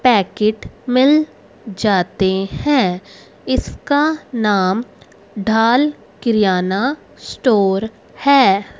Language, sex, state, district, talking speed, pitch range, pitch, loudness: Hindi, female, Haryana, Rohtak, 70 wpm, 195-260 Hz, 215 Hz, -16 LUFS